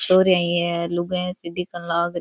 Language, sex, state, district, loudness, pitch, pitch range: Rajasthani, female, Rajasthan, Churu, -22 LUFS, 175 Hz, 170-180 Hz